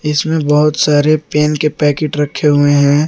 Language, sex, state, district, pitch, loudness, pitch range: Hindi, male, Jharkhand, Garhwa, 150 Hz, -13 LUFS, 145-150 Hz